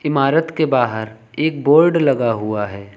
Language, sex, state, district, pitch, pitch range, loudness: Hindi, male, Uttar Pradesh, Lucknow, 135 Hz, 110-155 Hz, -16 LUFS